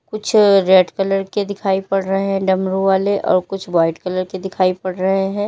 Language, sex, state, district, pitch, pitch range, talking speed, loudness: Hindi, female, Uttar Pradesh, Lalitpur, 195 Hz, 185-195 Hz, 210 wpm, -17 LUFS